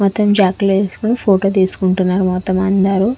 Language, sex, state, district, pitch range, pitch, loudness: Telugu, female, Andhra Pradesh, Sri Satya Sai, 190-200 Hz, 195 Hz, -14 LUFS